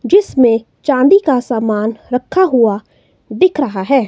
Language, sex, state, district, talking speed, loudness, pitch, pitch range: Hindi, female, Himachal Pradesh, Shimla, 130 wpm, -13 LUFS, 255 Hz, 225-290 Hz